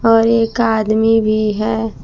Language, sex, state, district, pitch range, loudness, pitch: Hindi, female, Jharkhand, Palamu, 215-225 Hz, -15 LUFS, 225 Hz